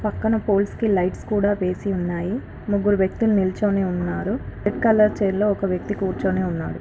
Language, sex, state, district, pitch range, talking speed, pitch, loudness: Telugu, female, Telangana, Karimnagar, 185-210 Hz, 150 wpm, 200 Hz, -22 LUFS